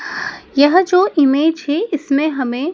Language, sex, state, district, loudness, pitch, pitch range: Hindi, female, Madhya Pradesh, Dhar, -15 LUFS, 305 Hz, 285-355 Hz